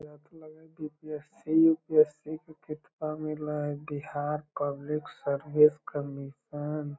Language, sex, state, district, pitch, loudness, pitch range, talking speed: Magahi, male, Bihar, Lakhisarai, 150 Hz, -29 LUFS, 145-155 Hz, 135 wpm